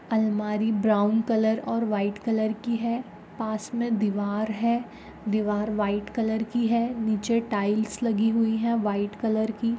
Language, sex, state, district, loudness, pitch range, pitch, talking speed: Hindi, female, Goa, North and South Goa, -26 LUFS, 210-230 Hz, 220 Hz, 155 wpm